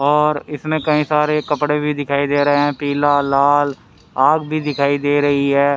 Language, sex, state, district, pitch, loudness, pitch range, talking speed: Hindi, male, Haryana, Rohtak, 145 Hz, -17 LUFS, 140-150 Hz, 185 wpm